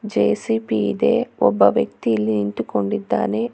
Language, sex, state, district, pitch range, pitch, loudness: Kannada, female, Karnataka, Bangalore, 100-115 Hz, 110 Hz, -20 LUFS